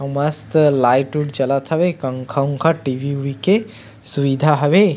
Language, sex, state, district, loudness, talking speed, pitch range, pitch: Chhattisgarhi, male, Chhattisgarh, Sukma, -18 LUFS, 180 wpm, 135-155 Hz, 140 Hz